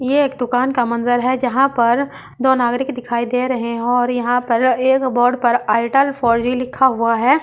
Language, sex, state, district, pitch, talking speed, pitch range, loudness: Hindi, female, Delhi, New Delhi, 250 Hz, 210 wpm, 240-260 Hz, -17 LUFS